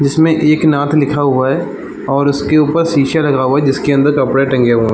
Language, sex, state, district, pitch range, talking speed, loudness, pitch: Hindi, male, Jharkhand, Jamtara, 135-150 Hz, 220 wpm, -12 LUFS, 140 Hz